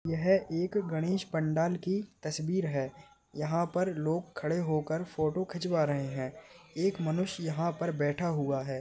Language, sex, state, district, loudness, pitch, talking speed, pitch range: Hindi, male, Maharashtra, Nagpur, -32 LUFS, 165 Hz, 155 wpm, 155-180 Hz